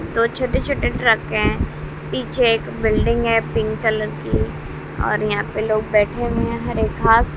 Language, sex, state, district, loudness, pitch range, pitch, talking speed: Hindi, female, Bihar, West Champaran, -20 LUFS, 150-225 Hz, 215 Hz, 170 wpm